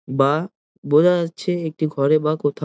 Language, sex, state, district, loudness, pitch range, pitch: Bengali, male, West Bengal, Jalpaiguri, -19 LUFS, 145-170 Hz, 155 Hz